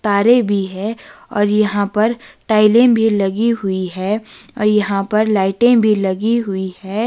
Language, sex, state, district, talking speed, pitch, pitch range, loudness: Hindi, female, Himachal Pradesh, Shimla, 160 wpm, 210 Hz, 195-225 Hz, -16 LUFS